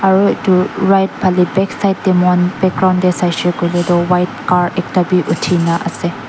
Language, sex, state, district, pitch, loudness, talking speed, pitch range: Nagamese, female, Nagaland, Dimapur, 180 Hz, -14 LUFS, 180 wpm, 175-190 Hz